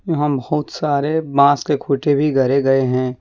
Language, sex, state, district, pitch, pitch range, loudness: Hindi, male, Jharkhand, Deoghar, 140 Hz, 135-150 Hz, -17 LUFS